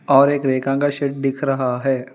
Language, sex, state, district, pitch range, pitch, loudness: Hindi, female, Telangana, Hyderabad, 130-140 Hz, 135 Hz, -19 LUFS